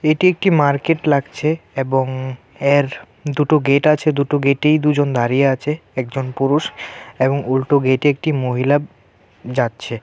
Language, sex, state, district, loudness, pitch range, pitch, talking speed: Bengali, male, Tripura, West Tripura, -17 LUFS, 130-150 Hz, 140 Hz, 130 wpm